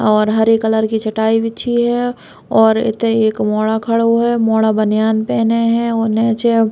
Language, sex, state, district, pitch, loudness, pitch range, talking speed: Bundeli, female, Uttar Pradesh, Hamirpur, 225 Hz, -15 LUFS, 220-230 Hz, 180 wpm